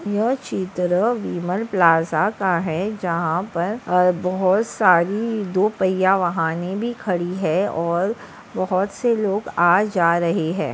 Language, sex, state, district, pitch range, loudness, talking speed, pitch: Hindi, female, Maharashtra, Dhule, 175-205 Hz, -20 LUFS, 140 wpm, 185 Hz